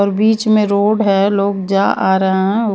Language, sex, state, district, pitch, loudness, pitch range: Hindi, female, Maharashtra, Mumbai Suburban, 200 Hz, -14 LUFS, 195-210 Hz